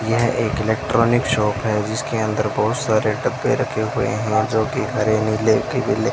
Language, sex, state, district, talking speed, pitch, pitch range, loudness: Hindi, male, Rajasthan, Bikaner, 165 wpm, 110 Hz, 110-115 Hz, -20 LUFS